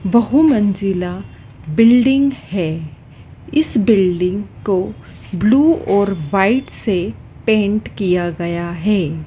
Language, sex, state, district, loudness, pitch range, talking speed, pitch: Hindi, female, Madhya Pradesh, Dhar, -16 LUFS, 170-225 Hz, 95 wpm, 195 Hz